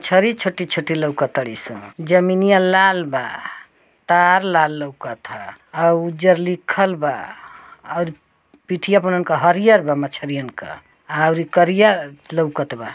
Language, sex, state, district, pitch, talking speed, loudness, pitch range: Bhojpuri, male, Uttar Pradesh, Ghazipur, 170 Hz, 130 wpm, -17 LUFS, 145-185 Hz